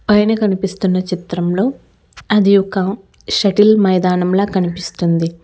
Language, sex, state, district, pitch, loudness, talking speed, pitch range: Telugu, female, Telangana, Hyderabad, 190 Hz, -15 LUFS, 90 wpm, 180-205 Hz